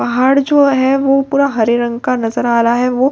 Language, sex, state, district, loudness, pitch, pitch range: Hindi, female, Bihar, Katihar, -13 LUFS, 255 Hz, 240-275 Hz